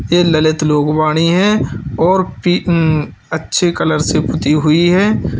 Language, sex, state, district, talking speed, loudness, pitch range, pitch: Hindi, male, Uttar Pradesh, Lalitpur, 145 wpm, -14 LUFS, 155-175 Hz, 165 Hz